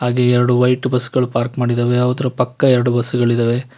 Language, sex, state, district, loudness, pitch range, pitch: Kannada, male, Karnataka, Bangalore, -16 LUFS, 120-125 Hz, 125 Hz